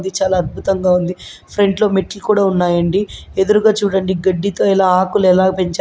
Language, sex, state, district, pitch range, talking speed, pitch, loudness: Telugu, female, Andhra Pradesh, Guntur, 185-200 Hz, 155 wpm, 190 Hz, -15 LUFS